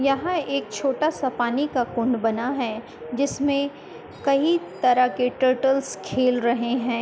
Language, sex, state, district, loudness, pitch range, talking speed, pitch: Hindi, female, Uttar Pradesh, Muzaffarnagar, -23 LUFS, 240-275 Hz, 145 wpm, 255 Hz